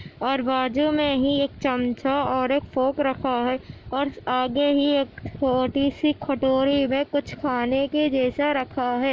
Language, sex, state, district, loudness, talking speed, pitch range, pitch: Hindi, male, Andhra Pradesh, Anantapur, -23 LUFS, 165 wpm, 255-285 Hz, 270 Hz